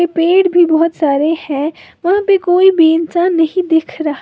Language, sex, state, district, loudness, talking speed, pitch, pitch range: Hindi, female, Uttar Pradesh, Lalitpur, -13 LUFS, 185 wpm, 335 Hz, 320-360 Hz